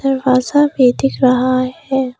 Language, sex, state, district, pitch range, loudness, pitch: Hindi, female, Arunachal Pradesh, Papum Pare, 255-270 Hz, -14 LUFS, 255 Hz